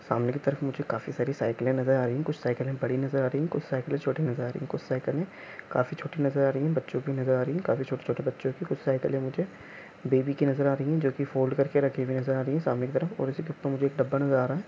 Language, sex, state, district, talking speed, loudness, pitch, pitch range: Hindi, male, Chhattisgarh, Bilaspur, 315 wpm, -29 LUFS, 135 Hz, 130-145 Hz